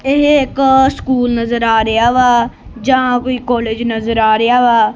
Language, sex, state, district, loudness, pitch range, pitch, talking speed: Punjabi, female, Punjab, Kapurthala, -13 LUFS, 230-260 Hz, 240 Hz, 170 wpm